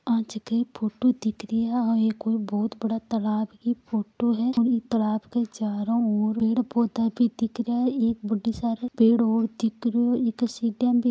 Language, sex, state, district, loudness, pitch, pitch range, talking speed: Marwari, female, Rajasthan, Nagaur, -25 LUFS, 230 Hz, 220-240 Hz, 195 wpm